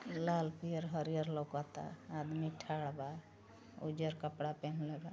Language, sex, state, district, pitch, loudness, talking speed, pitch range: Hindi, female, Uttar Pradesh, Ghazipur, 155 Hz, -42 LUFS, 130 wpm, 150-160 Hz